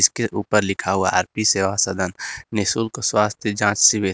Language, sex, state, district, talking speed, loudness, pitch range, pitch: Hindi, male, Jharkhand, Garhwa, 160 wpm, -20 LUFS, 95-110 Hz, 105 Hz